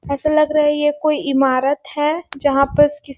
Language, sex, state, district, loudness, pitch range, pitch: Hindi, female, Chhattisgarh, Sarguja, -17 LUFS, 275-300 Hz, 295 Hz